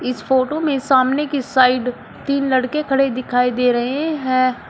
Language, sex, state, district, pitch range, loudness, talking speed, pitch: Hindi, female, Uttar Pradesh, Shamli, 250-280 Hz, -18 LUFS, 165 wpm, 260 Hz